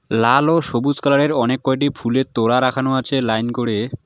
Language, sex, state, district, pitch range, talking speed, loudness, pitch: Bengali, male, West Bengal, Alipurduar, 120-140 Hz, 175 wpm, -18 LUFS, 130 Hz